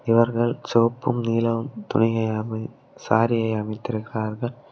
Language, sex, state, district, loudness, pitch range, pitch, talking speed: Tamil, male, Tamil Nadu, Kanyakumari, -23 LUFS, 110-120 Hz, 115 Hz, 75 wpm